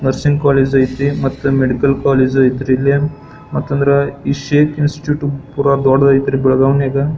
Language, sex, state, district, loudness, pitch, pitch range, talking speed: Kannada, male, Karnataka, Belgaum, -14 LUFS, 140 Hz, 135-145 Hz, 140 wpm